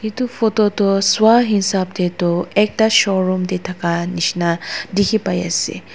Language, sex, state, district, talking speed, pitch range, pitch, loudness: Nagamese, female, Nagaland, Dimapur, 150 wpm, 180-220 Hz, 195 Hz, -17 LUFS